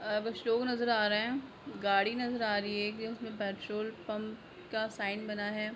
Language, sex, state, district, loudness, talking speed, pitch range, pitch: Hindi, female, Jharkhand, Jamtara, -34 LUFS, 175 wpm, 210-225 Hz, 215 Hz